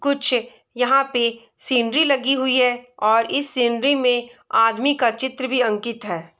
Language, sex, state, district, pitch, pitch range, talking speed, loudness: Hindi, female, Bihar, East Champaran, 245 Hz, 235-265 Hz, 160 wpm, -20 LUFS